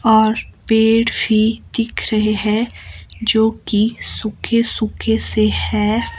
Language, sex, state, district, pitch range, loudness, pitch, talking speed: Hindi, male, Himachal Pradesh, Shimla, 210-225 Hz, -16 LUFS, 220 Hz, 105 wpm